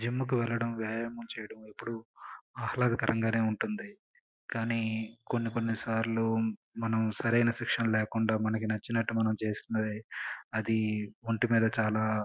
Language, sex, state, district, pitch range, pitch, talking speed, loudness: Telugu, male, Andhra Pradesh, Srikakulam, 110-115 Hz, 115 Hz, 125 wpm, -32 LUFS